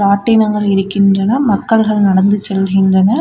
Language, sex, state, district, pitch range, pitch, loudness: Tamil, female, Tamil Nadu, Namakkal, 195-215 Hz, 200 Hz, -12 LUFS